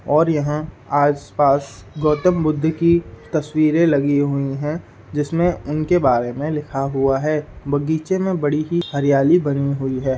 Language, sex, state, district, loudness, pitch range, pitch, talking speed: Hindi, male, Uttar Pradesh, Ghazipur, -19 LUFS, 140-155 Hz, 150 Hz, 145 wpm